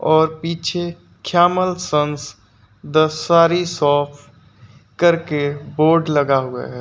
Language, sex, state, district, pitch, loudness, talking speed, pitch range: Hindi, male, Uttar Pradesh, Lucknow, 155 Hz, -17 LUFS, 105 wpm, 140-170 Hz